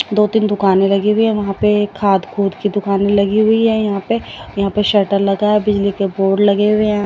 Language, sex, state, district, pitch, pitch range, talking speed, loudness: Hindi, female, Odisha, Malkangiri, 205 Hz, 200-210 Hz, 240 wpm, -15 LUFS